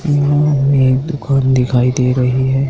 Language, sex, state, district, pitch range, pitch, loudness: Hindi, male, Madhya Pradesh, Dhar, 130-145 Hz, 135 Hz, -14 LUFS